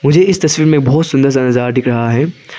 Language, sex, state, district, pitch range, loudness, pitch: Hindi, male, Arunachal Pradesh, Lower Dibang Valley, 125-155 Hz, -12 LUFS, 140 Hz